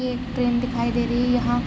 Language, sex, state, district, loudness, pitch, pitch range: Hindi, female, Jharkhand, Sahebganj, -23 LUFS, 245 Hz, 240-245 Hz